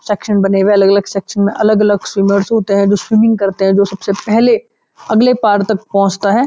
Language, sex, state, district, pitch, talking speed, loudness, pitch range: Hindi, male, Uttarakhand, Uttarkashi, 205 Hz, 205 wpm, -12 LUFS, 200-220 Hz